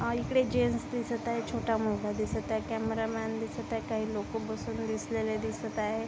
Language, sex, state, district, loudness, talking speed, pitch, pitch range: Marathi, female, Maharashtra, Aurangabad, -32 LUFS, 180 wpm, 225 Hz, 220-230 Hz